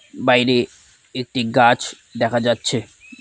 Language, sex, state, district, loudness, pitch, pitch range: Bengali, male, West Bengal, Dakshin Dinajpur, -18 LUFS, 125 Hz, 120-130 Hz